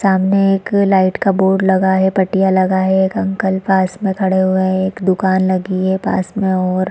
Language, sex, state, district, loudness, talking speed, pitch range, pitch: Hindi, female, Chhattisgarh, Bastar, -15 LUFS, 225 wpm, 185-195 Hz, 190 Hz